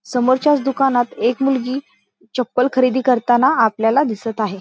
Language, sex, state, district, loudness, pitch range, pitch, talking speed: Marathi, female, Maharashtra, Solapur, -17 LUFS, 235-265 Hz, 255 Hz, 130 wpm